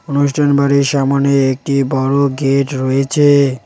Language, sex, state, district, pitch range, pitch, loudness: Bengali, male, West Bengal, Cooch Behar, 135-140 Hz, 140 Hz, -14 LUFS